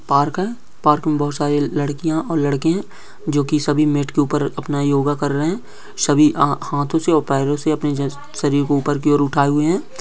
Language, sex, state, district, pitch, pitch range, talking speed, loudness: Hindi, male, Bihar, Araria, 145 Hz, 145-150 Hz, 235 wpm, -18 LUFS